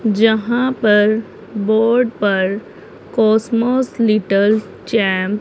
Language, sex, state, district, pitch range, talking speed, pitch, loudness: Hindi, female, Punjab, Pathankot, 210-230 Hz, 90 wpm, 220 Hz, -16 LUFS